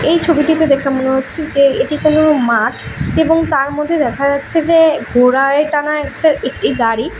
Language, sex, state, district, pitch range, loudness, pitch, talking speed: Bengali, female, West Bengal, Alipurduar, 275-315 Hz, -13 LUFS, 295 Hz, 175 wpm